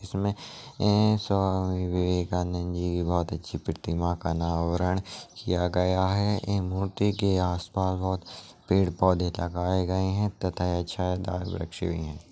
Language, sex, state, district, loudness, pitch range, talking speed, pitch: Hindi, male, Chhattisgarh, Kabirdham, -28 LUFS, 90-95 Hz, 135 wpm, 90 Hz